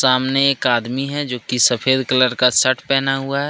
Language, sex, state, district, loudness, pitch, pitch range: Hindi, male, Jharkhand, Ranchi, -17 LUFS, 130 Hz, 125-135 Hz